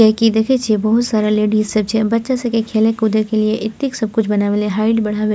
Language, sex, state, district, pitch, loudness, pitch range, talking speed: Maithili, female, Bihar, Purnia, 220 Hz, -16 LUFS, 215-225 Hz, 215 wpm